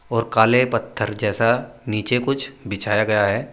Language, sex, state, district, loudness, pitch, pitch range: Hindi, male, Uttar Pradesh, Saharanpur, -20 LUFS, 115 Hz, 105-125 Hz